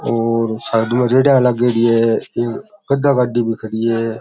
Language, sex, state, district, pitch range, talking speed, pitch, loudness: Rajasthani, male, Rajasthan, Churu, 115-125 Hz, 170 wpm, 115 Hz, -16 LUFS